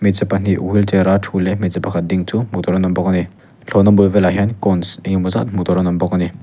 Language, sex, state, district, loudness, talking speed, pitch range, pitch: Mizo, male, Mizoram, Aizawl, -16 LUFS, 300 wpm, 90-100 Hz, 95 Hz